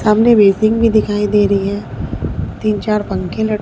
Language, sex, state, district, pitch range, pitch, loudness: Hindi, female, Bihar, Katihar, 205-215 Hz, 210 Hz, -15 LUFS